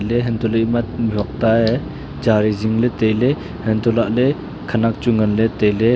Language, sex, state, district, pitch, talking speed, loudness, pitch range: Wancho, male, Arunachal Pradesh, Longding, 115 Hz, 180 wpm, -18 LUFS, 110-120 Hz